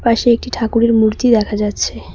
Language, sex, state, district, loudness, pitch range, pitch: Bengali, female, West Bengal, Cooch Behar, -15 LUFS, 215-235 Hz, 230 Hz